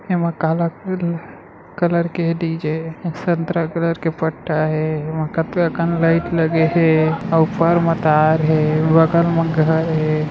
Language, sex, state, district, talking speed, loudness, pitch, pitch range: Chhattisgarhi, male, Chhattisgarh, Raigarh, 155 wpm, -18 LUFS, 165 Hz, 160-170 Hz